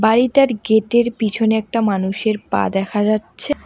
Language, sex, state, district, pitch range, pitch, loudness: Bengali, female, West Bengal, Alipurduar, 210-240 Hz, 220 Hz, -17 LUFS